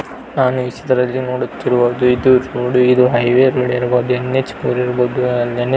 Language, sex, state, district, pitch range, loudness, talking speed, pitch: Kannada, male, Karnataka, Belgaum, 125-130 Hz, -15 LUFS, 165 wpm, 125 Hz